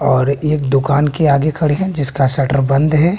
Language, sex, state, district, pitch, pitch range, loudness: Hindi, male, Bihar, West Champaran, 145 Hz, 140-155 Hz, -15 LUFS